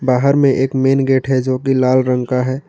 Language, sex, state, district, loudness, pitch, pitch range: Hindi, male, Jharkhand, Ranchi, -15 LUFS, 130 Hz, 130-135 Hz